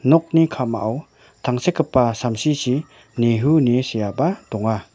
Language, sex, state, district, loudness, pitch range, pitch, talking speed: Garo, male, Meghalaya, West Garo Hills, -20 LUFS, 115-150 Hz, 125 Hz, 95 wpm